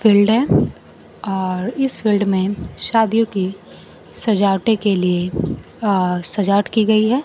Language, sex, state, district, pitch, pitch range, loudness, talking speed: Hindi, female, Bihar, Kaimur, 205 Hz, 190-220 Hz, -18 LUFS, 130 wpm